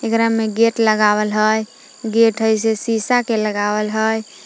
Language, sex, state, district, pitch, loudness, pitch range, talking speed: Magahi, female, Jharkhand, Palamu, 220 Hz, -17 LUFS, 215-225 Hz, 160 wpm